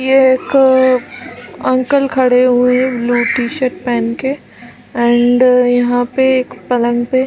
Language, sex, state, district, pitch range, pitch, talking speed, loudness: Hindi, female, Chhattisgarh, Balrampur, 245-260 Hz, 250 Hz, 155 wpm, -13 LUFS